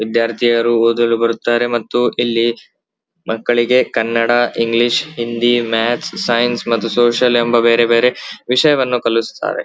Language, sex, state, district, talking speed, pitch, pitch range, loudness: Kannada, male, Karnataka, Belgaum, 120 wpm, 120 Hz, 115-120 Hz, -15 LUFS